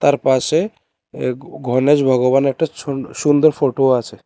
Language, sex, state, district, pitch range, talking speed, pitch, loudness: Bengali, male, Tripura, West Tripura, 130-145 Hz, 140 wpm, 135 Hz, -17 LUFS